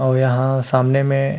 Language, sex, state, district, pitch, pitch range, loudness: Chhattisgarhi, male, Chhattisgarh, Rajnandgaon, 130 Hz, 130-135 Hz, -17 LUFS